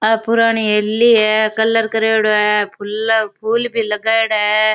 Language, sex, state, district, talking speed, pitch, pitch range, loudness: Rajasthani, female, Rajasthan, Churu, 150 wpm, 220 Hz, 210-225 Hz, -15 LUFS